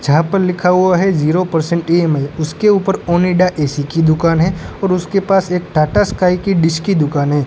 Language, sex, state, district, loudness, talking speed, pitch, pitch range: Hindi, female, Gujarat, Gandhinagar, -14 LUFS, 210 wpm, 170 Hz, 155-185 Hz